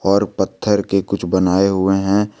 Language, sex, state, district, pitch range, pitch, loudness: Hindi, male, Jharkhand, Garhwa, 95-100 Hz, 100 Hz, -17 LUFS